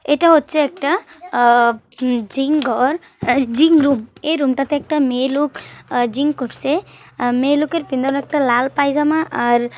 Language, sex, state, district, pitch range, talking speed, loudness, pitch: Bengali, female, West Bengal, Kolkata, 250-300 Hz, 125 wpm, -17 LUFS, 280 Hz